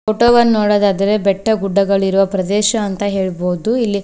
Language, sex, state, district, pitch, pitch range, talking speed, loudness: Kannada, female, Karnataka, Koppal, 200 Hz, 195-215 Hz, 135 wpm, -15 LUFS